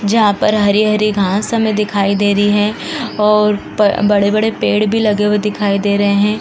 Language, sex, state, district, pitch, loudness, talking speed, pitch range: Hindi, female, Uttar Pradesh, Varanasi, 210 Hz, -14 LUFS, 185 wpm, 205-215 Hz